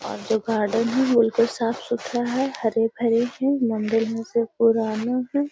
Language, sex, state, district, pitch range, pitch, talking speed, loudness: Hindi, female, Bihar, Gaya, 225-245 Hz, 230 Hz, 165 wpm, -22 LUFS